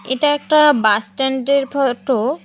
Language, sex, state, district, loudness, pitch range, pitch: Bengali, female, West Bengal, Cooch Behar, -16 LUFS, 260-290 Hz, 270 Hz